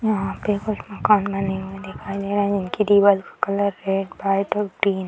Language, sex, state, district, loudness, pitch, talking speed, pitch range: Hindi, female, Bihar, Purnia, -21 LUFS, 200 Hz, 225 wpm, 195-205 Hz